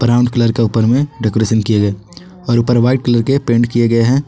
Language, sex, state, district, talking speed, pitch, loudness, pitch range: Hindi, male, Jharkhand, Ranchi, 225 wpm, 120 Hz, -14 LUFS, 110-125 Hz